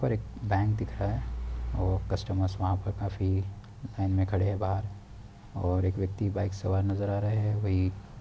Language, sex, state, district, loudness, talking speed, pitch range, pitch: Hindi, male, Uttar Pradesh, Deoria, -30 LUFS, 195 wpm, 95-105 Hz, 100 Hz